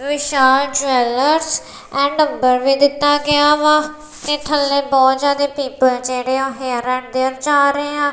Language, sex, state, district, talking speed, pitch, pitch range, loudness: Punjabi, female, Punjab, Kapurthala, 155 wpm, 280 Hz, 260-290 Hz, -16 LUFS